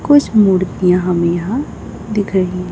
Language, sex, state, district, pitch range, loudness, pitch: Hindi, female, Chhattisgarh, Raipur, 180-215 Hz, -15 LUFS, 190 Hz